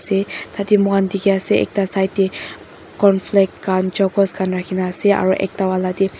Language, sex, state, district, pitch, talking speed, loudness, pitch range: Nagamese, female, Nagaland, Dimapur, 195 Hz, 155 wpm, -18 LUFS, 190-200 Hz